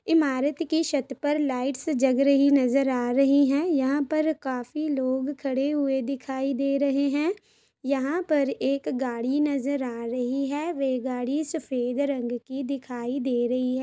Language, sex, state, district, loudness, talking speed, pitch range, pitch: Hindi, female, Chhattisgarh, Sukma, -25 LUFS, 170 wpm, 260-290 Hz, 275 Hz